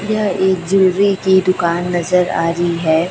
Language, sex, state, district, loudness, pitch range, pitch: Hindi, female, Chhattisgarh, Raipur, -15 LUFS, 170-190 Hz, 185 Hz